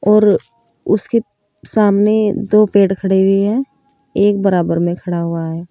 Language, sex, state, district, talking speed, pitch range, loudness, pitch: Hindi, female, Uttar Pradesh, Saharanpur, 145 wpm, 175-215 Hz, -15 LUFS, 200 Hz